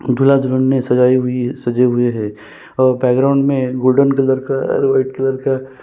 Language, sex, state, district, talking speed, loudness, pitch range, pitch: Hindi, male, Chhattisgarh, Kabirdham, 165 wpm, -15 LUFS, 125-135 Hz, 130 Hz